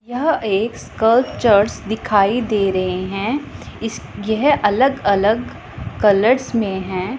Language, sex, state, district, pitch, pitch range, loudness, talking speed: Hindi, female, Punjab, Pathankot, 215 Hz, 200-245 Hz, -18 LUFS, 115 wpm